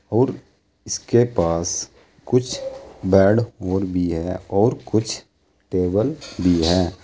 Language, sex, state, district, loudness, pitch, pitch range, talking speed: Hindi, male, Uttar Pradesh, Saharanpur, -21 LUFS, 95 Hz, 90-110 Hz, 110 wpm